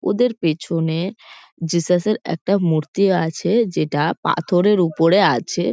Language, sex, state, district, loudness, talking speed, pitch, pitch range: Bengali, female, West Bengal, Kolkata, -19 LUFS, 115 wpm, 175 Hz, 165-200 Hz